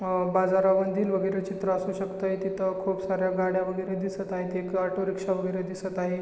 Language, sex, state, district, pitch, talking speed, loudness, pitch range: Marathi, male, Maharashtra, Chandrapur, 190 Hz, 185 wpm, -28 LUFS, 185-190 Hz